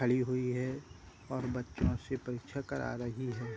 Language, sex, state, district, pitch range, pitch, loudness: Hindi, male, Uttar Pradesh, Gorakhpur, 120-130 Hz, 125 Hz, -37 LUFS